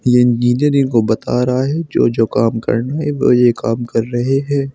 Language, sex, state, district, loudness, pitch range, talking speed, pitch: Hindi, male, Uttar Pradesh, Shamli, -15 LUFS, 115-135 Hz, 215 wpm, 125 Hz